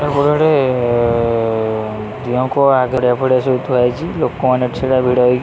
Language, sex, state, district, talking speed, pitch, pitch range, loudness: Odia, male, Odisha, Khordha, 165 wpm, 125 Hz, 120-130 Hz, -15 LUFS